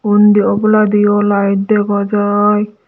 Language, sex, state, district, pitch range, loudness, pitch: Chakma, female, Tripura, Dhalai, 205-210 Hz, -12 LUFS, 205 Hz